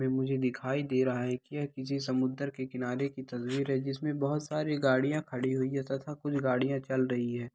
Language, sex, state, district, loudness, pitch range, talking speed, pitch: Hindi, male, Bihar, Saharsa, -32 LUFS, 130-140 Hz, 215 wpm, 130 Hz